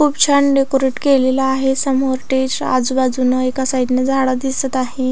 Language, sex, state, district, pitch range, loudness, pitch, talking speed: Marathi, female, Maharashtra, Aurangabad, 260-270 Hz, -16 LUFS, 265 Hz, 150 wpm